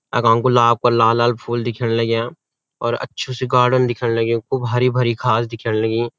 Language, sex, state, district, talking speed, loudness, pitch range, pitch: Garhwali, male, Uttarakhand, Uttarkashi, 185 wpm, -18 LUFS, 115-125 Hz, 120 Hz